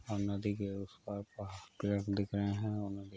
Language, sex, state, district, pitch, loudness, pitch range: Hindi, male, Uttar Pradesh, Hamirpur, 100 Hz, -38 LUFS, 100-105 Hz